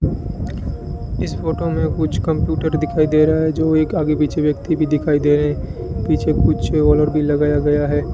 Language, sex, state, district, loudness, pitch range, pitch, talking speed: Hindi, male, Rajasthan, Bikaner, -18 LUFS, 150-155 Hz, 150 Hz, 190 wpm